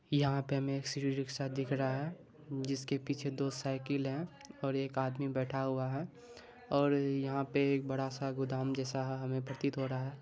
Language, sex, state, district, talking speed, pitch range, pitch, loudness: Maithili, male, Bihar, Supaul, 190 wpm, 135-140 Hz, 135 Hz, -36 LUFS